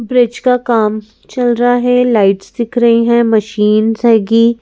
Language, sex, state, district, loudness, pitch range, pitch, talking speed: Hindi, female, Madhya Pradesh, Bhopal, -12 LUFS, 220-245 Hz, 235 Hz, 170 wpm